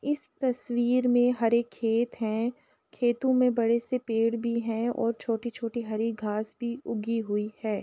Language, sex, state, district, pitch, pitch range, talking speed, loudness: Hindi, female, Uttar Pradesh, Jalaun, 235 Hz, 225-245 Hz, 160 wpm, -28 LUFS